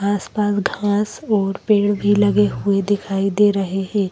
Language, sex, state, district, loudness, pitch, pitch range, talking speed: Hindi, female, Madhya Pradesh, Bhopal, -18 LUFS, 205 Hz, 195-205 Hz, 160 wpm